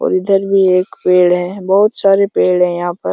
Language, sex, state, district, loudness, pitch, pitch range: Hindi, male, Jharkhand, Jamtara, -13 LUFS, 185 Hz, 180-195 Hz